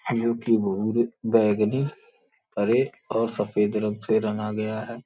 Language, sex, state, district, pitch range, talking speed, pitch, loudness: Hindi, male, Uttar Pradesh, Gorakhpur, 105-115 Hz, 140 wpm, 110 Hz, -25 LUFS